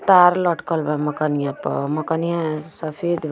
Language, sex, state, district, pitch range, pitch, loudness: Bhojpuri, female, Uttar Pradesh, Ghazipur, 150-170 Hz, 160 Hz, -21 LUFS